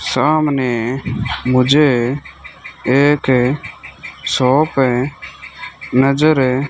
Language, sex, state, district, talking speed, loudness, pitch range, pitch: Hindi, male, Rajasthan, Bikaner, 65 wpm, -15 LUFS, 125-145 Hz, 130 Hz